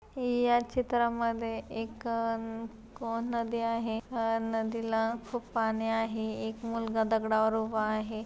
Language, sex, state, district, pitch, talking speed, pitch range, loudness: Marathi, female, Maharashtra, Pune, 225 Hz, 115 wpm, 225-230 Hz, -32 LUFS